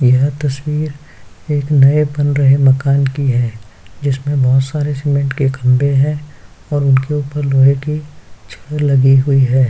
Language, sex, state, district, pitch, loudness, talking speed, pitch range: Hindi, male, Uttar Pradesh, Jyotiba Phule Nagar, 140 Hz, -14 LUFS, 155 wpm, 130-145 Hz